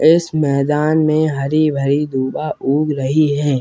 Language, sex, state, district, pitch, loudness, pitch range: Hindi, male, Bihar, Muzaffarpur, 150 Hz, -16 LUFS, 140-155 Hz